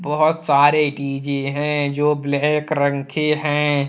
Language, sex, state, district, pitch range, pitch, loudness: Hindi, male, Jharkhand, Deoghar, 140-150 Hz, 145 Hz, -19 LUFS